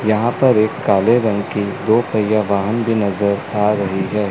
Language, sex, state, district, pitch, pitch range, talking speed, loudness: Hindi, male, Chandigarh, Chandigarh, 105 Hz, 100-110 Hz, 195 wpm, -17 LUFS